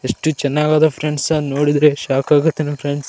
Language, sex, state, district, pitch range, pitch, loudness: Kannada, male, Karnataka, Raichur, 145-155 Hz, 150 Hz, -16 LUFS